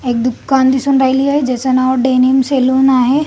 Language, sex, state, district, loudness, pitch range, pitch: Marathi, female, Maharashtra, Solapur, -12 LUFS, 255-270 Hz, 265 Hz